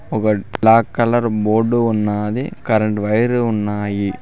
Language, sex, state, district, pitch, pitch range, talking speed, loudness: Telugu, male, Telangana, Mahabubabad, 110 Hz, 105-115 Hz, 115 wpm, -17 LUFS